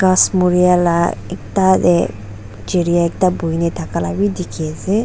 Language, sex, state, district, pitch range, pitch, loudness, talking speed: Nagamese, female, Nagaland, Dimapur, 165-185 Hz, 175 Hz, -16 LUFS, 180 wpm